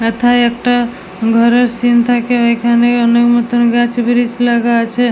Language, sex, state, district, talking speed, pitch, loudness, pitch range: Bengali, female, West Bengal, Jalpaiguri, 140 wpm, 240 Hz, -12 LUFS, 235-240 Hz